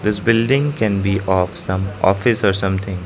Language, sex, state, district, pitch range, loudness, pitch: English, male, Arunachal Pradesh, Lower Dibang Valley, 95-110 Hz, -18 LUFS, 100 Hz